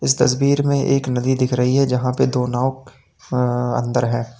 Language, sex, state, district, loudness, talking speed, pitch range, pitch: Hindi, male, Uttar Pradesh, Lalitpur, -19 LUFS, 190 wpm, 125-135 Hz, 125 Hz